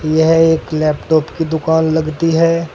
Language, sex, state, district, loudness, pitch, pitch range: Hindi, male, Uttar Pradesh, Saharanpur, -14 LUFS, 160 Hz, 155-165 Hz